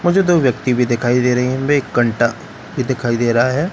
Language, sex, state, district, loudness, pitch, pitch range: Hindi, male, Bihar, Katihar, -16 LUFS, 125 Hz, 120-145 Hz